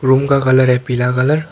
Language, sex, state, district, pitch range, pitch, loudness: Hindi, male, Tripura, Dhalai, 125-140 Hz, 130 Hz, -14 LUFS